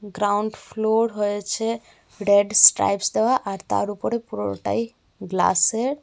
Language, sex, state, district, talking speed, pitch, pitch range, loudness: Bengali, female, Tripura, West Tripura, 110 wpm, 210 Hz, 200-225 Hz, -21 LUFS